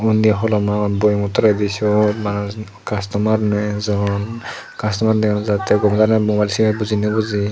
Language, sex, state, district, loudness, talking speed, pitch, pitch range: Chakma, male, Tripura, Dhalai, -18 LUFS, 185 wpm, 105 Hz, 105-110 Hz